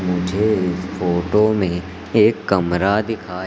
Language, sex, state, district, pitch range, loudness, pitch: Hindi, male, Madhya Pradesh, Katni, 90-105 Hz, -19 LUFS, 95 Hz